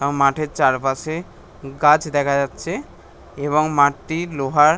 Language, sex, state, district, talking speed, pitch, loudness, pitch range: Bengali, male, West Bengal, North 24 Parganas, 100 wpm, 145 Hz, -19 LUFS, 140-155 Hz